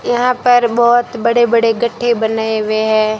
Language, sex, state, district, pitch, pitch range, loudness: Hindi, female, Rajasthan, Bikaner, 235 Hz, 220-240 Hz, -13 LUFS